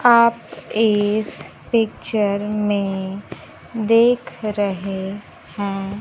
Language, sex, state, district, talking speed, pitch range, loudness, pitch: Hindi, female, Bihar, Kaimur, 70 wpm, 195-225 Hz, -20 LUFS, 205 Hz